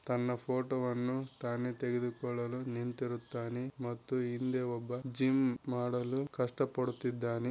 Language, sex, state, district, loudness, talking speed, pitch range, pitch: Kannada, male, Karnataka, Raichur, -36 LUFS, 95 wpm, 120-130 Hz, 125 Hz